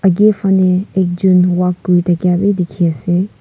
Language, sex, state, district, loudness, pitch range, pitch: Nagamese, female, Nagaland, Kohima, -13 LUFS, 180-190 Hz, 180 Hz